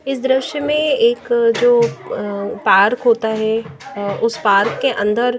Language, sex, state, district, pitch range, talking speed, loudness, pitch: Hindi, female, Bihar, Patna, 205-300 Hz, 165 wpm, -16 LUFS, 240 Hz